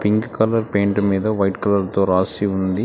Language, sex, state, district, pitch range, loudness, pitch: Telugu, male, Telangana, Hyderabad, 95-105 Hz, -19 LUFS, 100 Hz